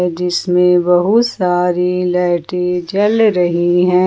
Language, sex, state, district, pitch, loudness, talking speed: Hindi, female, Jharkhand, Ranchi, 180 Hz, -14 LUFS, 105 wpm